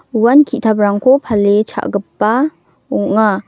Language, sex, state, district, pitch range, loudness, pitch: Garo, female, Meghalaya, North Garo Hills, 205-255 Hz, -13 LUFS, 220 Hz